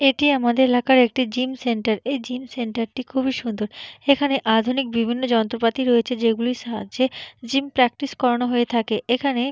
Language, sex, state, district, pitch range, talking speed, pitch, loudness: Bengali, female, West Bengal, Purulia, 230-260 Hz, 165 wpm, 245 Hz, -21 LUFS